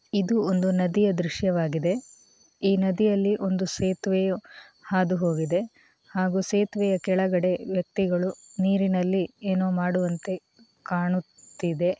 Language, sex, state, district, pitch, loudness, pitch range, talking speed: Kannada, female, Karnataka, Mysore, 185 Hz, -26 LUFS, 180-195 Hz, 85 wpm